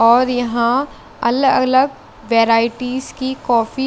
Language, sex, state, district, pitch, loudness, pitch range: Hindi, female, Chandigarh, Chandigarh, 250 Hz, -16 LUFS, 235-260 Hz